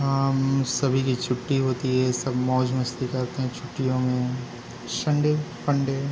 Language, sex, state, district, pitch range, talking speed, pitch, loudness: Hindi, male, Chhattisgarh, Bilaspur, 125-135 Hz, 145 wpm, 130 Hz, -25 LUFS